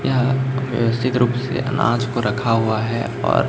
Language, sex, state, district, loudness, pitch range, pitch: Hindi, male, Chhattisgarh, Raipur, -20 LUFS, 115-130 Hz, 120 Hz